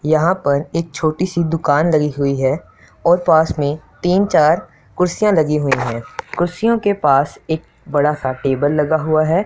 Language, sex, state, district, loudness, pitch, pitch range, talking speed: Hindi, male, Punjab, Pathankot, -17 LUFS, 155 Hz, 145-175 Hz, 175 wpm